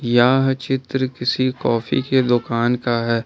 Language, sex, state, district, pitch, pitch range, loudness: Hindi, male, Jharkhand, Ranchi, 125 Hz, 120-130 Hz, -19 LUFS